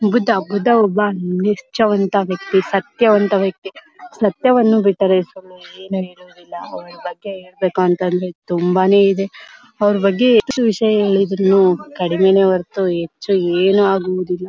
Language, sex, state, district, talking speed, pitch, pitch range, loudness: Kannada, female, Karnataka, Bellary, 115 wpm, 195 Hz, 185-210 Hz, -16 LUFS